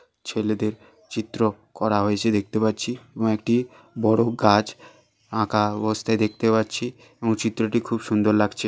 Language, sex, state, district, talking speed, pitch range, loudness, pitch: Bengali, male, West Bengal, Jalpaiguri, 140 wpm, 105-115 Hz, -23 LUFS, 110 Hz